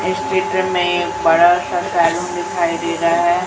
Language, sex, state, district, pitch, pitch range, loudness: Hindi, female, Chhattisgarh, Raipur, 170 Hz, 165-175 Hz, -16 LUFS